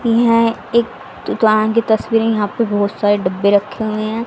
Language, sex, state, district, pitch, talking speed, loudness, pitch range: Hindi, female, Haryana, Rohtak, 220 Hz, 195 wpm, -16 LUFS, 205-230 Hz